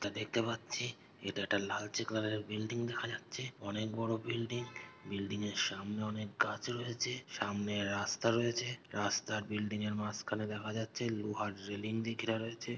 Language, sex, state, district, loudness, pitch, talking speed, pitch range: Bengali, male, West Bengal, North 24 Parganas, -38 LUFS, 110 Hz, 165 wpm, 105-115 Hz